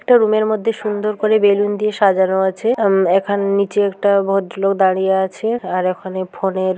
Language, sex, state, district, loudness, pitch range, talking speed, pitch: Bengali, female, West Bengal, Jhargram, -16 LUFS, 190-215 Hz, 185 wpm, 200 Hz